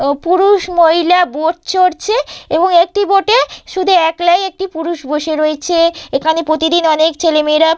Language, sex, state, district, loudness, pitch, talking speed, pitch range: Bengali, female, West Bengal, Purulia, -13 LUFS, 335 Hz, 160 wpm, 315-365 Hz